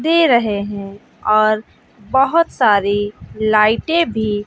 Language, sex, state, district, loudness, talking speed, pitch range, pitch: Hindi, female, Bihar, West Champaran, -16 LUFS, 105 wpm, 205-265 Hz, 215 Hz